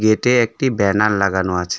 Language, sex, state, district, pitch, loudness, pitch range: Bengali, male, West Bengal, Darjeeling, 105 Hz, -17 LUFS, 95-115 Hz